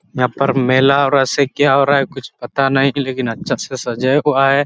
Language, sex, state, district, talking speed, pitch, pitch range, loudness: Hindi, male, Jharkhand, Sahebganj, 220 wpm, 135 Hz, 130-140 Hz, -15 LUFS